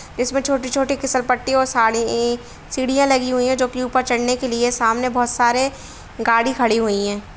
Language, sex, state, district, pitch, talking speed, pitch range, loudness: Bhojpuri, female, Bihar, Saran, 250 Hz, 195 wpm, 235-260 Hz, -19 LUFS